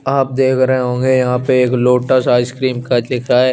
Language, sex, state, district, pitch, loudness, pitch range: Hindi, male, Chandigarh, Chandigarh, 125 Hz, -14 LUFS, 125-130 Hz